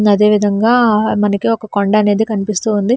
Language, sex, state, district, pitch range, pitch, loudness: Telugu, female, Telangana, Hyderabad, 205-220 Hz, 210 Hz, -13 LUFS